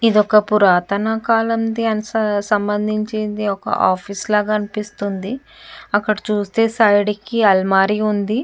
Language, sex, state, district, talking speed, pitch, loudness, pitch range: Telugu, female, Andhra Pradesh, Chittoor, 120 wpm, 210 Hz, -17 LUFS, 205-220 Hz